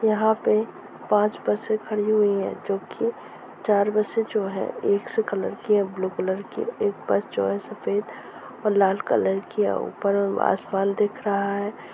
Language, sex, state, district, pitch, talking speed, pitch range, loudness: Hindi, male, Jharkhand, Sahebganj, 205 Hz, 185 wpm, 195-215 Hz, -24 LUFS